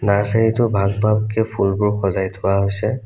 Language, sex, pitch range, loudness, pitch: Assamese, male, 100-110 Hz, -18 LUFS, 105 Hz